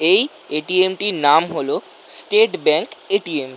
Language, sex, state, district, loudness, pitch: Bengali, male, West Bengal, North 24 Parganas, -18 LUFS, 190 Hz